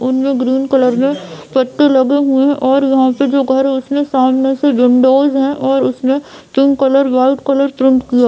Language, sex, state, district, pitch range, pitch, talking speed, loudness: Hindi, female, Bihar, Bhagalpur, 260-275 Hz, 270 Hz, 205 wpm, -13 LUFS